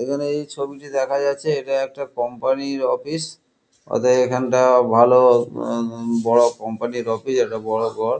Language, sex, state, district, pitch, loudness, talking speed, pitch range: Bengali, male, West Bengal, Kolkata, 125 Hz, -20 LUFS, 155 wpm, 120-140 Hz